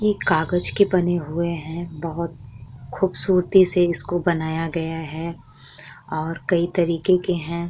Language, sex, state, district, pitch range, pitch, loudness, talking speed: Hindi, female, Bihar, Vaishali, 160-180 Hz, 170 Hz, -20 LUFS, 140 wpm